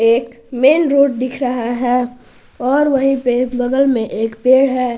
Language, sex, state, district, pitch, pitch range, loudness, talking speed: Hindi, female, Jharkhand, Garhwa, 250 Hz, 245-270 Hz, -15 LUFS, 180 wpm